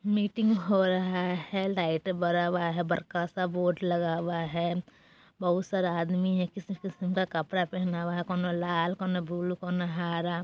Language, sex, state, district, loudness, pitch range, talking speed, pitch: Bajjika, female, Bihar, Vaishali, -30 LUFS, 175-185 Hz, 180 wpm, 180 Hz